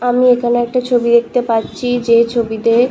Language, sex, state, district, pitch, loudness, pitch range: Bengali, female, West Bengal, Malda, 240 Hz, -14 LUFS, 235-245 Hz